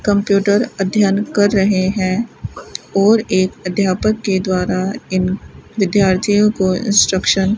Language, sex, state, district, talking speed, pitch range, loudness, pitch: Hindi, female, Rajasthan, Bikaner, 120 wpm, 185-205 Hz, -15 LUFS, 195 Hz